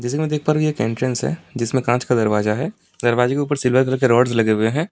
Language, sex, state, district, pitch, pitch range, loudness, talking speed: Hindi, male, Delhi, New Delhi, 125 Hz, 120-150 Hz, -19 LUFS, 315 wpm